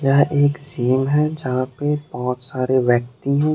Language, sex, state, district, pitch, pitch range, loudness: Hindi, male, Jharkhand, Deoghar, 135 Hz, 125-145 Hz, -18 LUFS